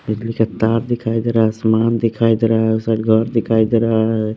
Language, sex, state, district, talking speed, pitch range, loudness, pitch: Hindi, male, Bihar, West Champaran, 245 wpm, 110-115 Hz, -16 LUFS, 115 Hz